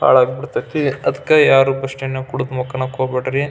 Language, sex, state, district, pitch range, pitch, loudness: Kannada, male, Karnataka, Belgaum, 130-135 Hz, 135 Hz, -17 LUFS